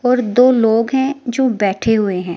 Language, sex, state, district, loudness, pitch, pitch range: Hindi, female, Himachal Pradesh, Shimla, -15 LUFS, 235 Hz, 210-255 Hz